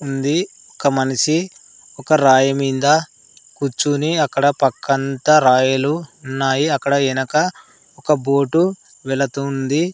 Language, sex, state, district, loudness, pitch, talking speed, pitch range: Telugu, male, Andhra Pradesh, Sri Satya Sai, -17 LUFS, 140 Hz, 95 wpm, 135-155 Hz